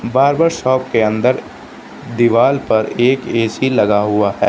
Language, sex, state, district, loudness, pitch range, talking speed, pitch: Hindi, male, Uttar Pradesh, Lucknow, -15 LUFS, 110-130 Hz, 145 wpm, 120 Hz